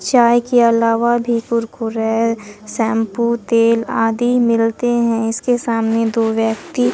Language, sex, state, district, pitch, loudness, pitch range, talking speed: Hindi, female, Bihar, Katihar, 230 Hz, -16 LUFS, 225-235 Hz, 120 wpm